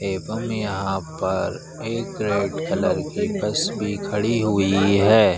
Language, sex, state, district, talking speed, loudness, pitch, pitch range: Hindi, male, Bihar, Sitamarhi, 135 wpm, -22 LUFS, 105 Hz, 100-110 Hz